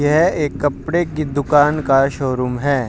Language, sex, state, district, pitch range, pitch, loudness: Hindi, male, Haryana, Jhajjar, 135-155 Hz, 145 Hz, -17 LUFS